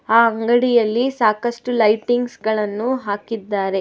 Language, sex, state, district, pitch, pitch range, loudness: Kannada, female, Karnataka, Bangalore, 230 Hz, 210-240 Hz, -18 LUFS